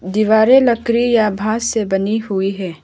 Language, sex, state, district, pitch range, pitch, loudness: Hindi, female, Arunachal Pradesh, Lower Dibang Valley, 195-230 Hz, 220 Hz, -15 LUFS